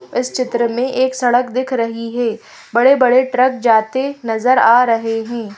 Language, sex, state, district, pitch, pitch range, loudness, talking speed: Hindi, female, Madhya Pradesh, Bhopal, 245 Hz, 230-255 Hz, -15 LUFS, 160 wpm